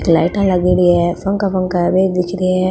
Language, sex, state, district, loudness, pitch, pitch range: Marwari, female, Rajasthan, Nagaur, -15 LUFS, 180 Hz, 175-185 Hz